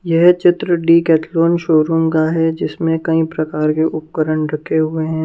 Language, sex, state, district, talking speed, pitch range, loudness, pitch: Hindi, female, Punjab, Kapurthala, 185 wpm, 155-165 Hz, -15 LUFS, 160 Hz